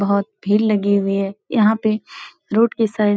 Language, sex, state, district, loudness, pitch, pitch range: Hindi, female, Uttar Pradesh, Etah, -18 LUFS, 210 Hz, 200-220 Hz